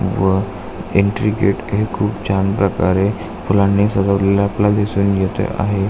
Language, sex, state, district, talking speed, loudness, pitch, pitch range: Marathi, male, Maharashtra, Aurangabad, 130 wpm, -17 LUFS, 100 Hz, 95-105 Hz